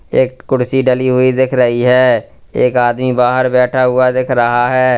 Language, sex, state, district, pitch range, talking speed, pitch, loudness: Hindi, male, Uttar Pradesh, Lalitpur, 125-130 Hz, 180 wpm, 130 Hz, -12 LUFS